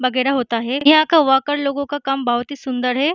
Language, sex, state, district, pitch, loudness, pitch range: Hindi, female, Uttar Pradesh, Deoria, 270 Hz, -17 LUFS, 255-290 Hz